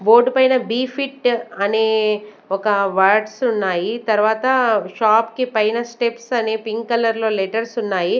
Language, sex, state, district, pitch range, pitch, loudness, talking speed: Telugu, female, Andhra Pradesh, Sri Satya Sai, 210-240 Hz, 225 Hz, -18 LUFS, 140 wpm